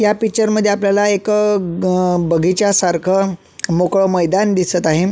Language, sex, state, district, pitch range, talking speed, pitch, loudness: Marathi, male, Maharashtra, Solapur, 180-205 Hz, 130 wpm, 190 Hz, -15 LUFS